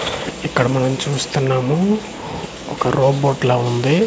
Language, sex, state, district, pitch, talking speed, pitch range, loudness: Telugu, male, Andhra Pradesh, Manyam, 135 Hz, 105 wpm, 130-150 Hz, -18 LUFS